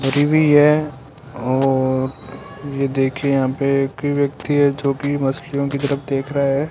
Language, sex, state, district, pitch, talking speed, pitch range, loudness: Hindi, male, Rajasthan, Bikaner, 140 Hz, 160 wpm, 135-145 Hz, -18 LUFS